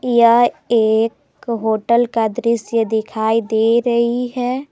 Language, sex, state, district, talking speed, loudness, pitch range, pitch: Hindi, female, Jharkhand, Palamu, 115 wpm, -17 LUFS, 220-240 Hz, 235 Hz